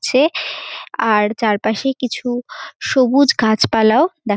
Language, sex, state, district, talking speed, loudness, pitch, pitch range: Bengali, female, West Bengal, North 24 Parganas, 110 wpm, -16 LUFS, 245 Hz, 220-270 Hz